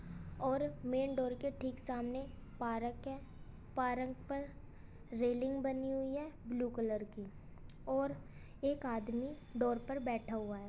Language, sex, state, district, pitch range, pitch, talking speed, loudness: Hindi, female, Uttar Pradesh, Muzaffarnagar, 240-270 Hz, 255 Hz, 150 wpm, -40 LUFS